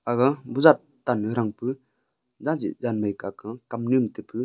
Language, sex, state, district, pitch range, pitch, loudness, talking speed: Wancho, male, Arunachal Pradesh, Longding, 115-130 Hz, 120 Hz, -25 LUFS, 150 wpm